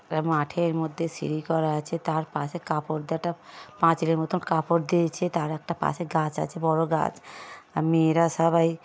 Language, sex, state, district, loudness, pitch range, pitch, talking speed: Bengali, male, West Bengal, Paschim Medinipur, -26 LUFS, 160-170 Hz, 165 Hz, 175 wpm